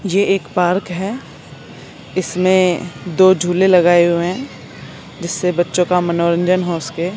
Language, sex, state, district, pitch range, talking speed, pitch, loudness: Hindi, female, Chandigarh, Chandigarh, 175-185 Hz, 140 wpm, 180 Hz, -16 LUFS